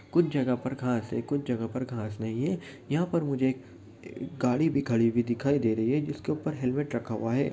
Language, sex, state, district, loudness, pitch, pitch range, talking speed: Hindi, male, Bihar, Lakhisarai, -29 LUFS, 125 Hz, 115-140 Hz, 230 wpm